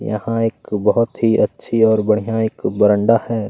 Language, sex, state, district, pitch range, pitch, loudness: Hindi, male, Chhattisgarh, Kabirdham, 105-115 Hz, 110 Hz, -17 LUFS